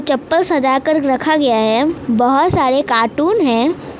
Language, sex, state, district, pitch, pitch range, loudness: Hindi, female, West Bengal, Alipurduar, 280 Hz, 245-310 Hz, -14 LUFS